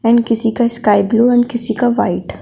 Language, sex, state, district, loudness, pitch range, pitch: Hindi, female, Uttar Pradesh, Shamli, -14 LUFS, 225-240 Hz, 235 Hz